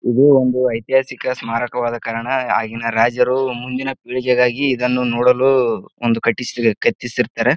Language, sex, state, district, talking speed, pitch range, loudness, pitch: Kannada, male, Karnataka, Bijapur, 110 wpm, 120-130 Hz, -18 LUFS, 125 Hz